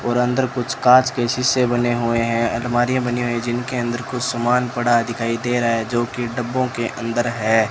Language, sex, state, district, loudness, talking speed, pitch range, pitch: Hindi, male, Rajasthan, Bikaner, -19 LUFS, 210 wpm, 120-125 Hz, 120 Hz